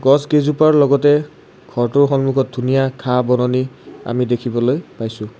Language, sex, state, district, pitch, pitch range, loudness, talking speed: Assamese, male, Assam, Kamrup Metropolitan, 130 Hz, 125-140 Hz, -16 LUFS, 110 wpm